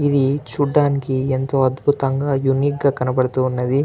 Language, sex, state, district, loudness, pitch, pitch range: Telugu, male, Andhra Pradesh, Anantapur, -19 LUFS, 135 Hz, 130-140 Hz